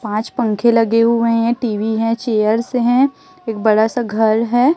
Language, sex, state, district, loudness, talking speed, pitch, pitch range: Hindi, female, Chhattisgarh, Raipur, -16 LUFS, 175 wpm, 230 Hz, 220-240 Hz